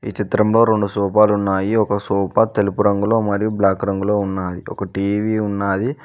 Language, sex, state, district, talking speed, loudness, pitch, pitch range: Telugu, male, Telangana, Mahabubabad, 160 wpm, -18 LUFS, 105 Hz, 100-110 Hz